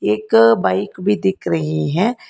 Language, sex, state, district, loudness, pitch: Hindi, female, Karnataka, Bangalore, -17 LUFS, 160 Hz